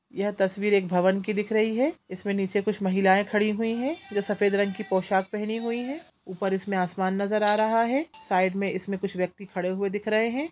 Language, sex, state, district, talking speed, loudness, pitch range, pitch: Hindi, female, Bihar, Jamui, 230 wpm, -26 LUFS, 190-215 Hz, 200 Hz